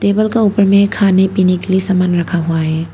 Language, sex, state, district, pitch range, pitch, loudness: Hindi, female, Arunachal Pradesh, Papum Pare, 175-200 Hz, 190 Hz, -13 LUFS